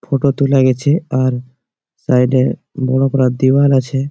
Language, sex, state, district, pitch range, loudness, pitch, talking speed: Bengali, male, West Bengal, Malda, 130-140 Hz, -14 LUFS, 135 Hz, 130 wpm